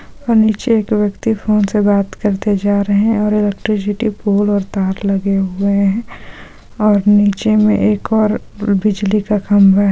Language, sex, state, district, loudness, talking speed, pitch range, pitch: Hindi, female, Bihar, Supaul, -14 LUFS, 170 wpm, 200-215 Hz, 205 Hz